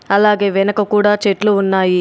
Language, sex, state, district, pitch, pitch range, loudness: Telugu, female, Telangana, Adilabad, 200 Hz, 195-210 Hz, -14 LUFS